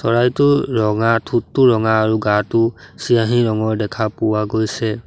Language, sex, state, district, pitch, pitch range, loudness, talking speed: Assamese, male, Assam, Sonitpur, 110 Hz, 110-120 Hz, -17 LUFS, 130 wpm